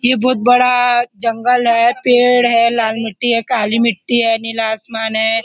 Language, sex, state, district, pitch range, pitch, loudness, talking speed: Hindi, female, Maharashtra, Nagpur, 225-245 Hz, 235 Hz, -13 LUFS, 175 wpm